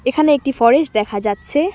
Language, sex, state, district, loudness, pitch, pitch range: Bengali, female, West Bengal, Cooch Behar, -16 LUFS, 270 Hz, 215-295 Hz